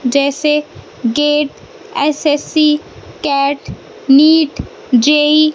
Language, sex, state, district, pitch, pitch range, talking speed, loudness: Hindi, female, Madhya Pradesh, Katni, 295 Hz, 280-300 Hz, 75 wpm, -13 LUFS